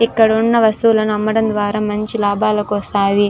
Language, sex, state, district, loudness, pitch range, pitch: Telugu, female, Andhra Pradesh, Chittoor, -15 LUFS, 205-220 Hz, 215 Hz